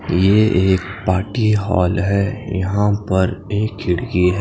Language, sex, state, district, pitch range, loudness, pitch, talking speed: Hindi, male, Odisha, Khordha, 95-105 Hz, -18 LUFS, 100 Hz, 120 wpm